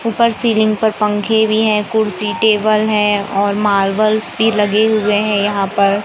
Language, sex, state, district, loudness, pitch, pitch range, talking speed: Hindi, male, Madhya Pradesh, Katni, -14 LUFS, 215 Hz, 205-220 Hz, 170 wpm